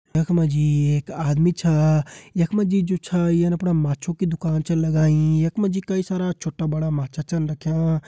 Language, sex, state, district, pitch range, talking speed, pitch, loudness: Hindi, male, Uttarakhand, Uttarkashi, 155-175 Hz, 210 wpm, 160 Hz, -21 LUFS